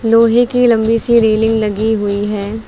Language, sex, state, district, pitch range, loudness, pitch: Hindi, female, Uttar Pradesh, Lucknow, 215-230 Hz, -13 LUFS, 225 Hz